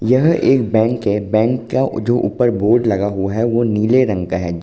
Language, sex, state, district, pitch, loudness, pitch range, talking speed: Hindi, male, Uttar Pradesh, Ghazipur, 115 Hz, -16 LUFS, 100-120 Hz, 220 wpm